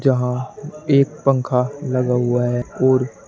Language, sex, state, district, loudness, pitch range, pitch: Hindi, male, Uttar Pradesh, Shamli, -19 LUFS, 125-140 Hz, 130 Hz